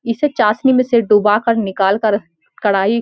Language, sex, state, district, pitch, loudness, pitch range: Hindi, female, Uttarakhand, Uttarkashi, 215 Hz, -15 LUFS, 205-235 Hz